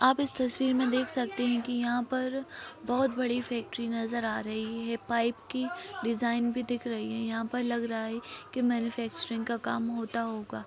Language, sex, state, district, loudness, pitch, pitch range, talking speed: Hindi, female, Chhattisgarh, Korba, -31 LUFS, 240 Hz, 230-250 Hz, 195 wpm